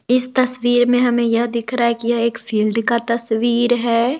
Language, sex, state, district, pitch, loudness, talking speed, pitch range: Hindi, female, Bihar, West Champaran, 235 Hz, -17 LUFS, 215 wpm, 230-245 Hz